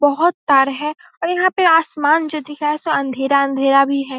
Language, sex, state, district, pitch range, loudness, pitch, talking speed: Hindi, female, Bihar, Saharsa, 275-325 Hz, -16 LUFS, 295 Hz, 200 wpm